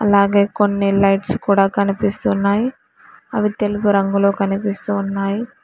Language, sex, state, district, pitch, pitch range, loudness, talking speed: Telugu, male, Telangana, Hyderabad, 200 Hz, 195-210 Hz, -17 LUFS, 105 wpm